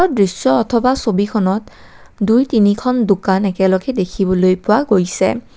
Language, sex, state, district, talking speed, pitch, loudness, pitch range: Assamese, female, Assam, Kamrup Metropolitan, 95 wpm, 200 Hz, -15 LUFS, 190-230 Hz